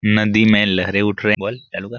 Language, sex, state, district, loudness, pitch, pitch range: Hindi, male, Chhattisgarh, Bilaspur, -16 LUFS, 105 Hz, 100-110 Hz